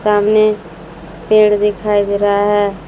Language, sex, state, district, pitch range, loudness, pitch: Hindi, female, Jharkhand, Palamu, 195-210 Hz, -13 LUFS, 205 Hz